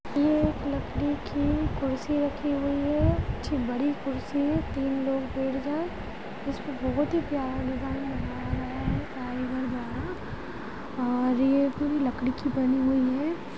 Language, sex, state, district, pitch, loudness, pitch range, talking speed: Hindi, female, Chhattisgarh, Sarguja, 270 Hz, -28 LUFS, 255-290 Hz, 145 wpm